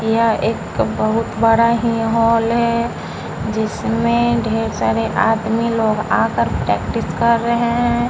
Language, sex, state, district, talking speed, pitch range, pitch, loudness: Hindi, female, Bihar, Patna, 125 wpm, 225-235 Hz, 230 Hz, -17 LUFS